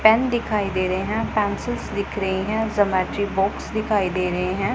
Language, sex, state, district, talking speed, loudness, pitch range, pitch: Hindi, female, Punjab, Pathankot, 190 wpm, -22 LUFS, 190-220 Hz, 205 Hz